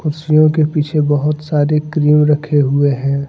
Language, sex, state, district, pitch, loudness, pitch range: Hindi, male, Jharkhand, Deoghar, 150 Hz, -14 LUFS, 145-155 Hz